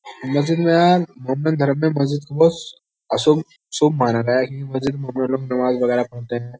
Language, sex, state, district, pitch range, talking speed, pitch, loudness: Hindi, male, Uttar Pradesh, Jyotiba Phule Nagar, 125-160 Hz, 180 wpm, 140 Hz, -19 LUFS